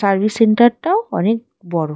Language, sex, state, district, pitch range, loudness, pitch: Bengali, female, West Bengal, Dakshin Dinajpur, 195-240 Hz, -16 LUFS, 220 Hz